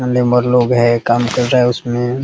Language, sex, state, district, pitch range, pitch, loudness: Hindi, male, Bihar, Muzaffarpur, 120-125 Hz, 125 Hz, -14 LUFS